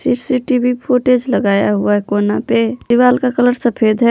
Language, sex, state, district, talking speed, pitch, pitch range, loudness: Hindi, female, Jharkhand, Palamu, 190 wpm, 245 Hz, 210-250 Hz, -14 LUFS